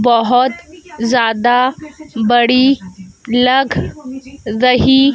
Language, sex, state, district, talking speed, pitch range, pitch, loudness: Hindi, female, Madhya Pradesh, Dhar, 60 wpm, 235-270 Hz, 250 Hz, -13 LUFS